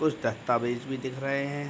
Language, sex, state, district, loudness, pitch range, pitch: Hindi, male, Bihar, Begusarai, -30 LUFS, 120-140 Hz, 135 Hz